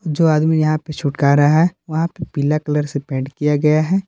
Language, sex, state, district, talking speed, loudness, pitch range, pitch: Hindi, male, Jharkhand, Palamu, 235 wpm, -17 LUFS, 145-160 Hz, 155 Hz